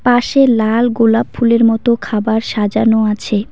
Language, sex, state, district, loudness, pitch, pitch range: Bengali, female, West Bengal, Cooch Behar, -13 LUFS, 225 Hz, 220-235 Hz